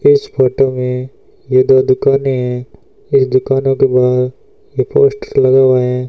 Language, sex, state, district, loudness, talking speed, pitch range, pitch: Hindi, male, Rajasthan, Bikaner, -13 LUFS, 160 wpm, 125-135 Hz, 130 Hz